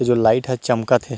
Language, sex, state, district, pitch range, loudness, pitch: Chhattisgarhi, male, Chhattisgarh, Rajnandgaon, 115-125 Hz, -18 LUFS, 125 Hz